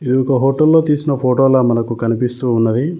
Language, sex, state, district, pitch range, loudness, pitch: Telugu, male, Telangana, Mahabubabad, 120-140 Hz, -15 LUFS, 130 Hz